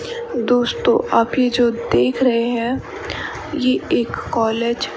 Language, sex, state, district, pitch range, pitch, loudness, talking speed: Hindi, female, Rajasthan, Bikaner, 235-265 Hz, 245 Hz, -19 LUFS, 120 wpm